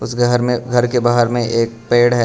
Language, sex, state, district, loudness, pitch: Hindi, male, Arunachal Pradesh, Lower Dibang Valley, -16 LUFS, 120 Hz